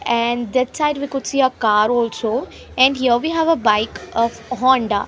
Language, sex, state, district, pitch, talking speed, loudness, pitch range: English, female, Haryana, Rohtak, 250 Hz, 215 wpm, -18 LUFS, 230-270 Hz